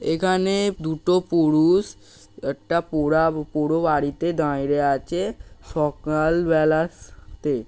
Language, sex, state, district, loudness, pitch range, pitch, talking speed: Bengali, male, West Bengal, Paschim Medinipur, -22 LUFS, 150-170 Hz, 160 Hz, 95 wpm